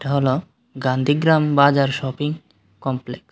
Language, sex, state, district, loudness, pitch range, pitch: Bengali, male, Tripura, West Tripura, -20 LUFS, 130-145 Hz, 140 Hz